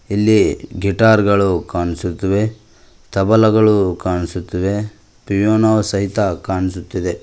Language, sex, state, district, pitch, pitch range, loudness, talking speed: Kannada, male, Karnataka, Koppal, 100 Hz, 90-110 Hz, -16 LUFS, 75 wpm